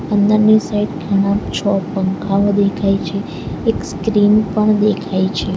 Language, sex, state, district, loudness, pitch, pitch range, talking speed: Gujarati, female, Gujarat, Valsad, -16 LUFS, 200 Hz, 195-210 Hz, 130 wpm